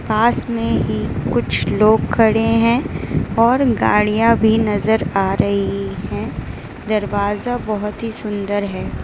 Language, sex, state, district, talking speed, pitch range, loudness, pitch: Hindi, female, Gujarat, Valsad, 125 wpm, 190-225 Hz, -17 LUFS, 215 Hz